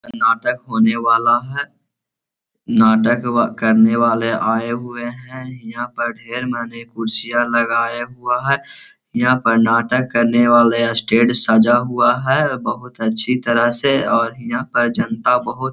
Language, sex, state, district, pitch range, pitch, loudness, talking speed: Hindi, male, Bihar, Gaya, 115-125 Hz, 120 Hz, -16 LUFS, 145 wpm